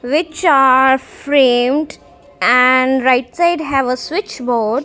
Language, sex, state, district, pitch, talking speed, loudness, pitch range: English, female, Punjab, Kapurthala, 260 Hz, 125 wpm, -14 LUFS, 250-295 Hz